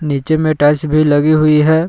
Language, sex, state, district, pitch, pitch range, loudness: Hindi, male, Jharkhand, Palamu, 155 Hz, 150-155 Hz, -12 LUFS